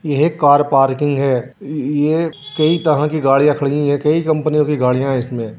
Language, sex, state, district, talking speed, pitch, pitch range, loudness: Hindi, male, Uttar Pradesh, Jyotiba Phule Nagar, 195 wpm, 145 Hz, 135-155 Hz, -15 LUFS